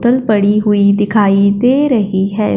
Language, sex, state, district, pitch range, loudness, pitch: Hindi, female, Punjab, Fazilka, 200-230 Hz, -12 LUFS, 205 Hz